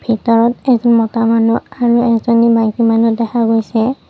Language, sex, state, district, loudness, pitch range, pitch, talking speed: Assamese, female, Assam, Kamrup Metropolitan, -13 LUFS, 225-235 Hz, 230 Hz, 130 wpm